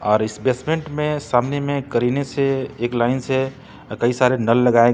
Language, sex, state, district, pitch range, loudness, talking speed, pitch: Hindi, male, Jharkhand, Ranchi, 120-140 Hz, -20 LUFS, 205 wpm, 130 Hz